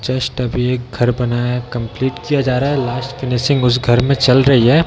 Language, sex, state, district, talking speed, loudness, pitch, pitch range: Hindi, male, Bihar, East Champaran, 235 wpm, -16 LUFS, 125 Hz, 120-135 Hz